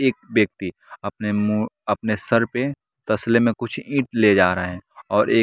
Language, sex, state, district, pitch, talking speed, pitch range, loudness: Hindi, male, Bihar, West Champaran, 110 Hz, 190 wpm, 105-120 Hz, -21 LUFS